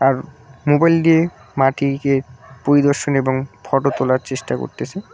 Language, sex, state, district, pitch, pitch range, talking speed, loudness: Bengali, male, West Bengal, Cooch Behar, 135 Hz, 130-145 Hz, 130 wpm, -18 LUFS